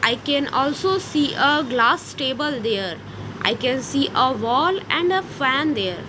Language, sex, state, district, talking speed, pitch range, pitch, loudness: English, female, Odisha, Nuapada, 165 wpm, 230-300 Hz, 270 Hz, -20 LUFS